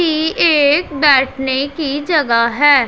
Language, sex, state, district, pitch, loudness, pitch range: Hindi, female, Punjab, Pathankot, 290 Hz, -14 LUFS, 265-310 Hz